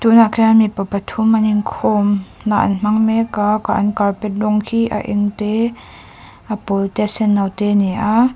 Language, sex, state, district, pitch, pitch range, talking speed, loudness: Mizo, female, Mizoram, Aizawl, 210 Hz, 205-220 Hz, 195 wpm, -16 LUFS